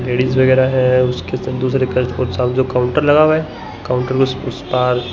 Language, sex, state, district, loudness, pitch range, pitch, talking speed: Hindi, male, Gujarat, Gandhinagar, -16 LUFS, 125-130 Hz, 130 Hz, 175 wpm